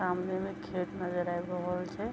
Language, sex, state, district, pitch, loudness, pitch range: Maithili, female, Bihar, Vaishali, 180 Hz, -35 LUFS, 180-185 Hz